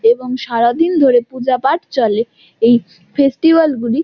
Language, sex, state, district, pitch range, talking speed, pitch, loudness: Bengali, female, West Bengal, Jhargram, 235-300 Hz, 120 wpm, 255 Hz, -14 LUFS